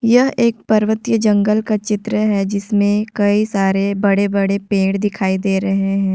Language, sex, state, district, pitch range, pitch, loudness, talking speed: Hindi, female, Jharkhand, Ranchi, 195-215 Hz, 205 Hz, -16 LUFS, 155 wpm